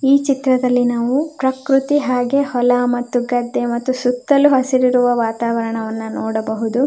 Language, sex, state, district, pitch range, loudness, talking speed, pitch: Kannada, female, Karnataka, Belgaum, 240-265 Hz, -17 LUFS, 115 wpm, 245 Hz